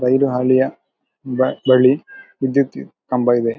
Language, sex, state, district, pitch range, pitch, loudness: Kannada, male, Karnataka, Dakshina Kannada, 125-135 Hz, 130 Hz, -17 LUFS